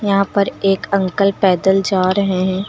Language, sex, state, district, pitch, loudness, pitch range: Hindi, female, Uttar Pradesh, Lucknow, 195 Hz, -16 LUFS, 185-200 Hz